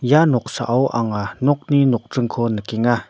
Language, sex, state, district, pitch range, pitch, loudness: Garo, male, Meghalaya, North Garo Hills, 115-135 Hz, 120 Hz, -19 LUFS